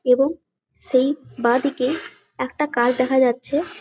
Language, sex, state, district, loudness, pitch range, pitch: Bengali, female, West Bengal, Jalpaiguri, -21 LUFS, 250-285 Hz, 260 Hz